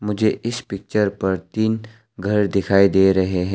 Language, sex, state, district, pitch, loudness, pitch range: Hindi, male, Arunachal Pradesh, Lower Dibang Valley, 100 Hz, -20 LUFS, 95-110 Hz